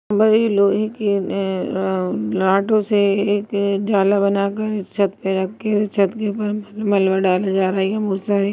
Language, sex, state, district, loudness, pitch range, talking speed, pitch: Hindi, female, Bihar, Muzaffarpur, -19 LUFS, 195-210 Hz, 175 wpm, 200 Hz